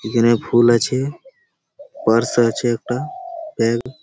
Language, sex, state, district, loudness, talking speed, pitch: Bengali, male, West Bengal, Malda, -18 LUFS, 120 wpm, 125 Hz